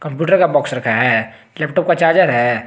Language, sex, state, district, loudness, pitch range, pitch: Hindi, male, Jharkhand, Garhwa, -15 LUFS, 120-170 Hz, 145 Hz